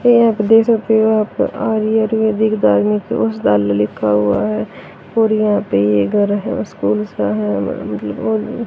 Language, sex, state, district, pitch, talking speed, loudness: Hindi, female, Haryana, Rohtak, 185 Hz, 160 wpm, -16 LUFS